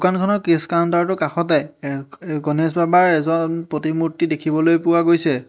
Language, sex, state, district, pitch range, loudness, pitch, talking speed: Assamese, male, Assam, Hailakandi, 155-170 Hz, -18 LUFS, 165 Hz, 140 wpm